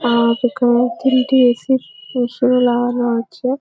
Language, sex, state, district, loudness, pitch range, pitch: Bengali, female, West Bengal, Jhargram, -16 LUFS, 240-255 Hz, 245 Hz